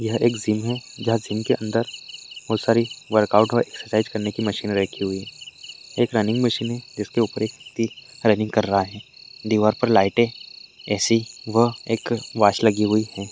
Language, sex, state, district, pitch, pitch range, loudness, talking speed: Hindi, male, Maharashtra, Chandrapur, 110 Hz, 105-115 Hz, -22 LUFS, 180 wpm